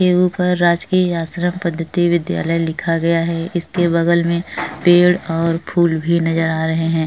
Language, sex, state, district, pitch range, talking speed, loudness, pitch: Hindi, female, Uttar Pradesh, Etah, 165-175 Hz, 170 wpm, -17 LUFS, 170 Hz